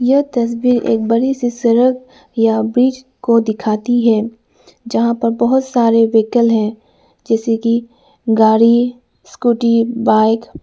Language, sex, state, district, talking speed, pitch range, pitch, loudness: Hindi, female, Arunachal Pradesh, Lower Dibang Valley, 130 wpm, 225-245 Hz, 235 Hz, -14 LUFS